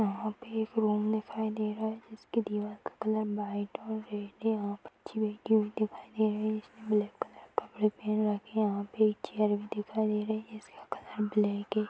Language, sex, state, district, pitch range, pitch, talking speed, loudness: Hindi, female, Uttar Pradesh, Ghazipur, 210-220 Hz, 215 Hz, 230 wpm, -33 LUFS